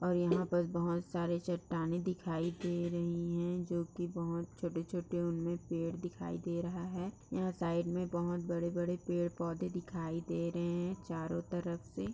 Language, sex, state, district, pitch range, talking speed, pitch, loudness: Hindi, female, Bihar, Jamui, 170-175 Hz, 175 wpm, 175 Hz, -38 LUFS